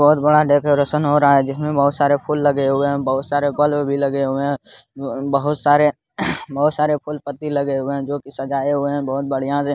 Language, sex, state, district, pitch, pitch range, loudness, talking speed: Hindi, male, Bihar, Supaul, 145 Hz, 140-145 Hz, -18 LUFS, 215 wpm